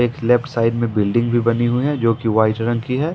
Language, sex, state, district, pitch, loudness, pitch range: Hindi, male, Jharkhand, Ranchi, 120 Hz, -18 LUFS, 115-120 Hz